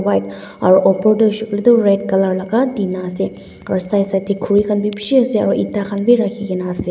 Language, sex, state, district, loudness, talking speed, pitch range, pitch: Nagamese, female, Nagaland, Dimapur, -16 LUFS, 225 wpm, 185-215 Hz, 200 Hz